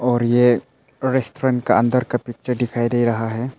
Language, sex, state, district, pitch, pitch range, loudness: Hindi, male, Arunachal Pradesh, Papum Pare, 120 Hz, 120-125 Hz, -19 LUFS